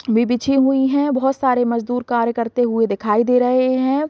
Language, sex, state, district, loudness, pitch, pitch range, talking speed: Hindi, female, Bihar, East Champaran, -17 LUFS, 245 Hz, 235-265 Hz, 205 wpm